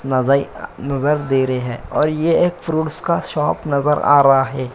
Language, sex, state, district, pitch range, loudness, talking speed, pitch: Hindi, male, Uttar Pradesh, Muzaffarnagar, 135-155 Hz, -17 LUFS, 190 wpm, 140 Hz